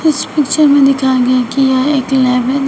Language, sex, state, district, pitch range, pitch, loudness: Hindi, female, Uttar Pradesh, Shamli, 260-280 Hz, 270 Hz, -11 LUFS